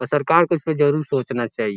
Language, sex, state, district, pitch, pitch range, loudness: Hindi, male, Uttar Pradesh, Gorakhpur, 145 Hz, 125-160 Hz, -19 LUFS